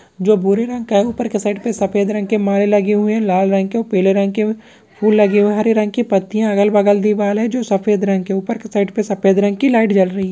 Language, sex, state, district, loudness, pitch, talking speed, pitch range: Hindi, female, Bihar, Samastipur, -16 LUFS, 205 Hz, 285 wpm, 200-220 Hz